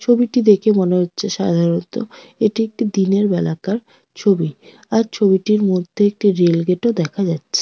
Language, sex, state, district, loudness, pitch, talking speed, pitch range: Bengali, female, West Bengal, North 24 Parganas, -17 LUFS, 200 Hz, 140 wpm, 180-220 Hz